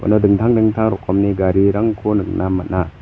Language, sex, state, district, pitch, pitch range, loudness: Garo, male, Meghalaya, West Garo Hills, 100 Hz, 95-110 Hz, -16 LUFS